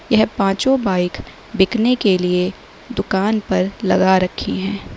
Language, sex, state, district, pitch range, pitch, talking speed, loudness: Hindi, female, Uttar Pradesh, Lalitpur, 180-220 Hz, 190 Hz, 135 wpm, -18 LUFS